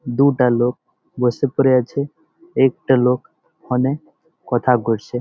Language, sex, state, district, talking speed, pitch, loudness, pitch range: Bengali, male, West Bengal, Malda, 115 wpm, 130 Hz, -18 LUFS, 125-140 Hz